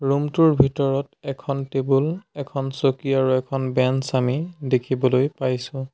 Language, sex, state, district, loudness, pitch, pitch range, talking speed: Assamese, male, Assam, Sonitpur, -22 LUFS, 135 Hz, 130-140 Hz, 130 wpm